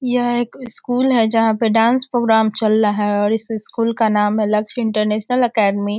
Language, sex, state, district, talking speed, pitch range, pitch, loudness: Hindi, female, Bihar, Sitamarhi, 210 wpm, 215-240 Hz, 225 Hz, -16 LUFS